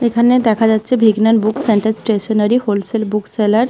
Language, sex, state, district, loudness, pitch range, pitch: Bengali, female, West Bengal, Malda, -14 LUFS, 215-230 Hz, 220 Hz